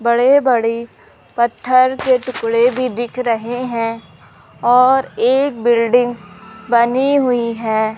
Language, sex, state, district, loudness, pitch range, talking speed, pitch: Hindi, female, Madhya Pradesh, Umaria, -15 LUFS, 230-255 Hz, 115 wpm, 240 Hz